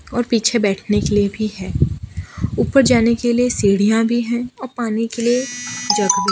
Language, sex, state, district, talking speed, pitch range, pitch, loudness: Hindi, female, Gujarat, Valsad, 200 wpm, 205-240 Hz, 230 Hz, -18 LUFS